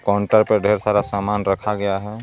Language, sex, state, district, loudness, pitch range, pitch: Hindi, male, Jharkhand, Garhwa, -19 LUFS, 100-105 Hz, 105 Hz